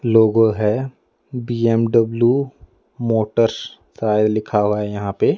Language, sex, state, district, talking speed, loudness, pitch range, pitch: Hindi, male, Odisha, Nuapada, 110 wpm, -18 LUFS, 105-120 Hz, 115 Hz